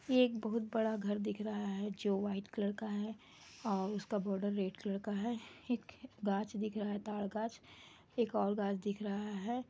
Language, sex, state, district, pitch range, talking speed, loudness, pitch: Hindi, female, Jharkhand, Sahebganj, 200-220 Hz, 205 wpm, -38 LUFS, 210 Hz